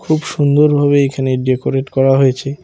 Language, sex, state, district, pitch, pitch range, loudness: Bengali, male, West Bengal, Cooch Behar, 135 Hz, 135-145 Hz, -14 LUFS